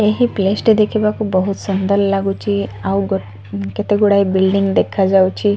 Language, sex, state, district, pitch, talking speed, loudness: Odia, female, Odisha, Sambalpur, 195 Hz, 130 wpm, -16 LUFS